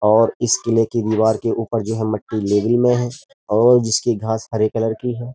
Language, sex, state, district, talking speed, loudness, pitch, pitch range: Hindi, male, Uttar Pradesh, Jyotiba Phule Nagar, 225 wpm, -18 LUFS, 115 Hz, 110-120 Hz